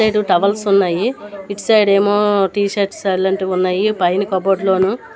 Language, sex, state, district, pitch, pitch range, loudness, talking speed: Telugu, female, Andhra Pradesh, Srikakulam, 200 Hz, 190-205 Hz, -16 LUFS, 140 wpm